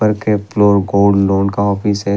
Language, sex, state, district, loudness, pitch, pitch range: Hindi, male, Assam, Kamrup Metropolitan, -14 LUFS, 100 Hz, 100-105 Hz